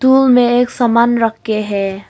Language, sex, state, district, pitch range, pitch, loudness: Hindi, female, Arunachal Pradesh, Longding, 215-245 Hz, 235 Hz, -13 LUFS